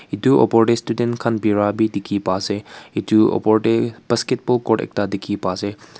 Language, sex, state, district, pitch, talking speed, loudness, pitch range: Nagamese, male, Nagaland, Kohima, 110 Hz, 90 wpm, -19 LUFS, 100-115 Hz